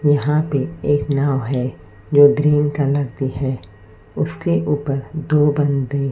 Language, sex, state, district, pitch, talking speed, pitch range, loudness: Hindi, female, Maharashtra, Mumbai Suburban, 140 Hz, 135 wpm, 135-145 Hz, -18 LUFS